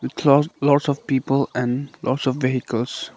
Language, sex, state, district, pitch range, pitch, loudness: Hindi, male, Arunachal Pradesh, Lower Dibang Valley, 130-140 Hz, 135 Hz, -21 LUFS